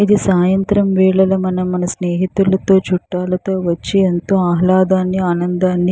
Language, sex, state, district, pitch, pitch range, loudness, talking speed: Telugu, female, Andhra Pradesh, Chittoor, 185 Hz, 180-190 Hz, -15 LUFS, 110 wpm